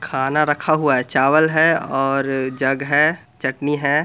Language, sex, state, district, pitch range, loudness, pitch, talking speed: Hindi, male, Bihar, Muzaffarpur, 135-150 Hz, -17 LUFS, 140 Hz, 165 wpm